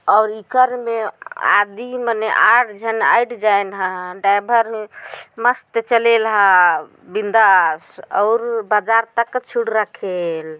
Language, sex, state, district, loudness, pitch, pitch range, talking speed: Hindi, female, Chhattisgarh, Jashpur, -17 LUFS, 220 Hz, 205-235 Hz, 100 wpm